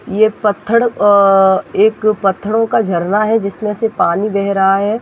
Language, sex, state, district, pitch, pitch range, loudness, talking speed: Hindi, female, Chhattisgarh, Raigarh, 210 Hz, 195-220 Hz, -13 LUFS, 165 wpm